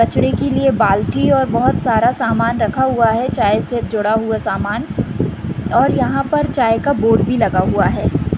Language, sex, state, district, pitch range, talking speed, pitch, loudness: Hindi, female, Chhattisgarh, Raigarh, 220-255 Hz, 185 wpm, 225 Hz, -16 LUFS